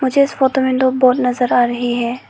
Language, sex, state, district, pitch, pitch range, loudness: Hindi, female, Arunachal Pradesh, Lower Dibang Valley, 255 Hz, 245-265 Hz, -15 LUFS